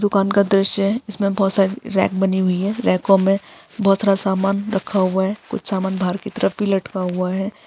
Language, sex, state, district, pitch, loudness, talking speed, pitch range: Hindi, female, Bihar, Gaya, 195 Hz, -18 LUFS, 220 wpm, 190-200 Hz